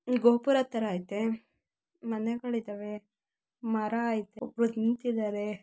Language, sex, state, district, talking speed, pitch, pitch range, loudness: Kannada, female, Karnataka, Gulbarga, 85 wpm, 225 Hz, 210-240 Hz, -31 LUFS